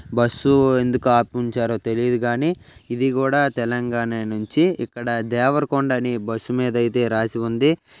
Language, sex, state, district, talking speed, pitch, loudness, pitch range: Telugu, male, Telangana, Nalgonda, 135 wpm, 120 Hz, -20 LUFS, 115-130 Hz